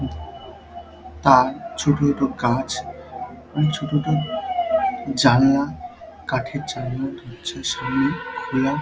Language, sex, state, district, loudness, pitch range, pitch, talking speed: Bengali, male, West Bengal, Dakshin Dinajpur, -21 LUFS, 135-155 Hz, 140 Hz, 100 wpm